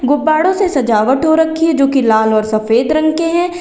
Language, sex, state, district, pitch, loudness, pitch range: Hindi, female, Uttar Pradesh, Lalitpur, 300 Hz, -13 LUFS, 235-325 Hz